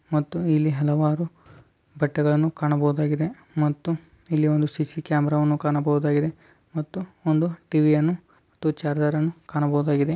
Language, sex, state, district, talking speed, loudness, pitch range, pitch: Kannada, male, Karnataka, Dharwad, 105 wpm, -24 LUFS, 150-160 Hz, 150 Hz